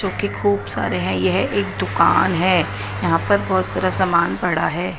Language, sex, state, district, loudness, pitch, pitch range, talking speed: Hindi, female, Odisha, Nuapada, -19 LUFS, 100 Hz, 95-100 Hz, 190 wpm